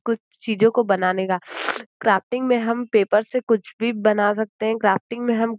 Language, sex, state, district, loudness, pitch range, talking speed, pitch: Hindi, female, Uttar Pradesh, Gorakhpur, -21 LUFS, 205-235 Hz, 205 wpm, 220 Hz